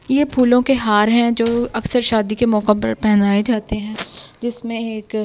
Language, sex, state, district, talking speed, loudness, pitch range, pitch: Hindi, female, Delhi, New Delhi, 185 wpm, -17 LUFS, 210-240 Hz, 225 Hz